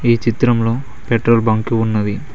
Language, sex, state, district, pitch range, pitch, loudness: Telugu, male, Telangana, Mahabubabad, 110-115 Hz, 115 Hz, -16 LUFS